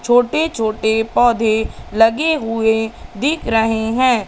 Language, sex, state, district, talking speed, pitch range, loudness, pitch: Hindi, female, Madhya Pradesh, Katni, 110 wpm, 220-245 Hz, -16 LUFS, 225 Hz